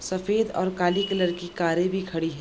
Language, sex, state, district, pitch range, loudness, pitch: Hindi, female, Bihar, Darbhanga, 175-190 Hz, -25 LUFS, 180 Hz